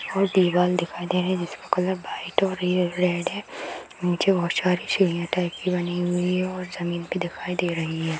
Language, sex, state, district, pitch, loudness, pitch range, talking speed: Hindi, female, Uttar Pradesh, Hamirpur, 180 Hz, -25 LUFS, 175-185 Hz, 195 wpm